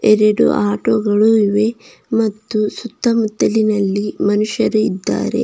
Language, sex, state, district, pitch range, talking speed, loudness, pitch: Kannada, female, Karnataka, Bidar, 205-220 Hz, 90 wpm, -16 LUFS, 215 Hz